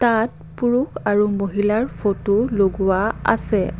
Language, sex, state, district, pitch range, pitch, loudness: Assamese, female, Assam, Kamrup Metropolitan, 200-230 Hz, 205 Hz, -20 LUFS